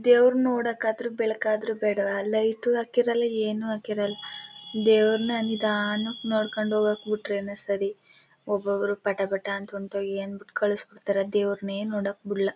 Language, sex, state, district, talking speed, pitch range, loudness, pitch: Kannada, female, Karnataka, Chamarajanagar, 100 wpm, 200-220 Hz, -26 LUFS, 210 Hz